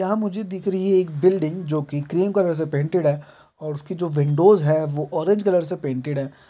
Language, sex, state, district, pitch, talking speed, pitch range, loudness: Hindi, male, Jharkhand, Jamtara, 165 Hz, 230 wpm, 150-190 Hz, -21 LUFS